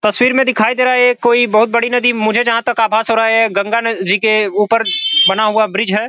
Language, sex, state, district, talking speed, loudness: Hindi, male, Uttar Pradesh, Gorakhpur, 265 wpm, -13 LUFS